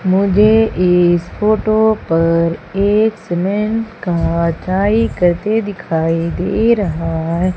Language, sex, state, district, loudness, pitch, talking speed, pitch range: Hindi, female, Madhya Pradesh, Umaria, -15 LUFS, 185 Hz, 105 wpm, 170-215 Hz